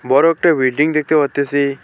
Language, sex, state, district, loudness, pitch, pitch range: Bengali, male, West Bengal, Alipurduar, -15 LUFS, 140 Hz, 135-155 Hz